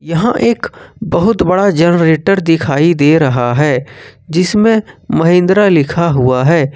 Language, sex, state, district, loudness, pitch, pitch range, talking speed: Hindi, male, Jharkhand, Ranchi, -11 LUFS, 165 Hz, 145-190 Hz, 125 wpm